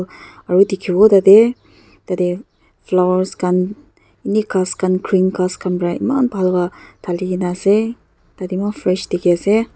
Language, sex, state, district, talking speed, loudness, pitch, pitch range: Nagamese, female, Nagaland, Dimapur, 170 wpm, -16 LUFS, 185 Hz, 180-205 Hz